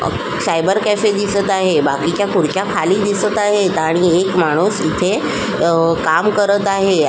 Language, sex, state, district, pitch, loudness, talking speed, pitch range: Marathi, female, Maharashtra, Solapur, 195 Hz, -15 LUFS, 145 wpm, 175-205 Hz